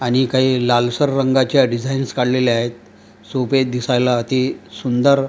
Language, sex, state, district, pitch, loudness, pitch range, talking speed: Marathi, male, Maharashtra, Gondia, 125 Hz, -17 LUFS, 120-130 Hz, 135 wpm